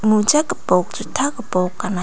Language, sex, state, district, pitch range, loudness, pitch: Garo, female, Meghalaya, North Garo Hills, 185-275 Hz, -19 LUFS, 215 Hz